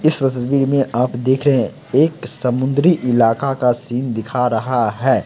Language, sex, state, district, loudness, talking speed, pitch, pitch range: Hindi, male, Bihar, Samastipur, -17 LUFS, 170 wpm, 130 Hz, 120-140 Hz